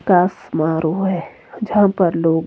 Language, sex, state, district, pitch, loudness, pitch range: Hindi, female, Himachal Pradesh, Shimla, 180 Hz, -18 LUFS, 160-195 Hz